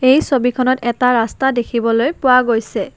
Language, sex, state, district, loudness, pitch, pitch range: Assamese, female, Assam, Kamrup Metropolitan, -15 LUFS, 250 Hz, 235-260 Hz